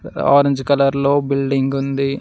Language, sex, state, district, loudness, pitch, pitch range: Telugu, male, Telangana, Mahabubabad, -17 LUFS, 140 Hz, 135-140 Hz